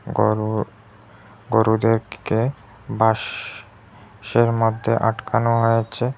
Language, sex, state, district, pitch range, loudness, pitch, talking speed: Bengali, male, Assam, Hailakandi, 110-115 Hz, -20 LUFS, 110 Hz, 70 wpm